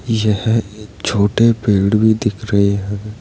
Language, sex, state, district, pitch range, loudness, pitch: Hindi, male, Uttar Pradesh, Saharanpur, 100-110 Hz, -16 LUFS, 105 Hz